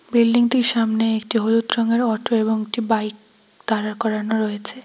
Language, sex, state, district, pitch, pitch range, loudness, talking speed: Bengali, female, West Bengal, Cooch Behar, 225 Hz, 220-230 Hz, -19 LUFS, 160 wpm